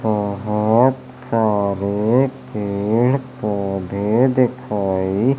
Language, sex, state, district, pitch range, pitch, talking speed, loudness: Hindi, male, Madhya Pradesh, Umaria, 100-125 Hz, 105 Hz, 55 wpm, -19 LUFS